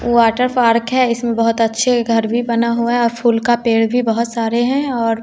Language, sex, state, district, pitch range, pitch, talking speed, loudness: Hindi, female, Bihar, West Champaran, 230-240 Hz, 235 Hz, 230 wpm, -15 LUFS